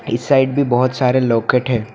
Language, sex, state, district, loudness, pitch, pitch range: Hindi, male, Assam, Hailakandi, -16 LUFS, 125 Hz, 120-130 Hz